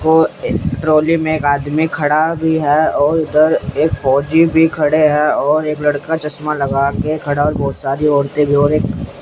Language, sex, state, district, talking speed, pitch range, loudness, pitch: Hindi, male, Haryana, Jhajjar, 195 wpm, 145-155 Hz, -15 LUFS, 150 Hz